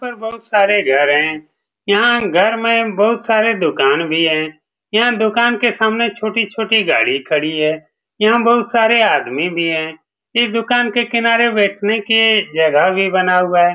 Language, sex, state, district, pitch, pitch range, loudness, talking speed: Hindi, male, Bihar, Saran, 215 Hz, 170-230 Hz, -14 LUFS, 165 wpm